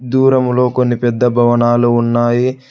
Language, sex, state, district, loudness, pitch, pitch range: Telugu, male, Telangana, Hyderabad, -13 LUFS, 120 Hz, 120-125 Hz